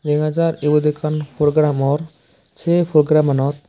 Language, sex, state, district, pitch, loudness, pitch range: Chakma, male, Tripura, West Tripura, 150 Hz, -17 LUFS, 145-155 Hz